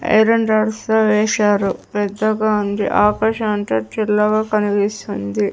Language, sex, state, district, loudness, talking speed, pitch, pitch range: Telugu, female, Andhra Pradesh, Sri Satya Sai, -17 LUFS, 85 wpm, 210 Hz, 205-215 Hz